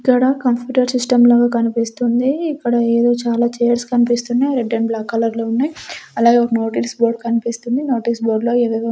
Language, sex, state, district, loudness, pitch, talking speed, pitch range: Telugu, female, Andhra Pradesh, Sri Satya Sai, -17 LUFS, 240 Hz, 175 wpm, 230-245 Hz